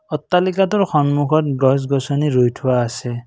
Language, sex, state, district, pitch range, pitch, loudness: Assamese, male, Assam, Kamrup Metropolitan, 130-155 Hz, 145 Hz, -17 LUFS